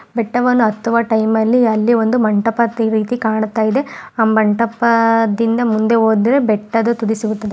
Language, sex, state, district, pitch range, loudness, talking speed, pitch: Kannada, female, Karnataka, Mysore, 220-235 Hz, -15 LUFS, 125 wpm, 225 Hz